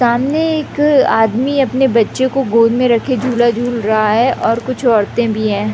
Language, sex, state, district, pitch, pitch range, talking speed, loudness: Hindi, female, Chhattisgarh, Raigarh, 240 Hz, 230-265 Hz, 175 wpm, -14 LUFS